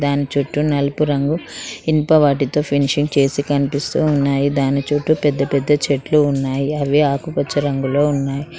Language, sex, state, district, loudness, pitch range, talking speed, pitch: Telugu, female, Telangana, Mahabubabad, -17 LUFS, 140-150 Hz, 135 wpm, 145 Hz